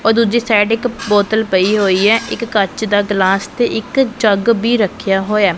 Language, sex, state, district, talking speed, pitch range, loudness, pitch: Punjabi, female, Punjab, Pathankot, 195 wpm, 200-230 Hz, -14 LUFS, 215 Hz